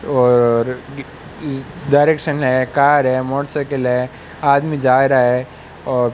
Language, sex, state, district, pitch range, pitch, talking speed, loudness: Hindi, male, Rajasthan, Bikaner, 125-145 Hz, 135 Hz, 125 wpm, -16 LUFS